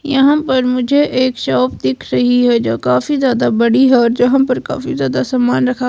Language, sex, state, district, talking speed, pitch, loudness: Hindi, female, Himachal Pradesh, Shimla, 205 wpm, 250 Hz, -14 LUFS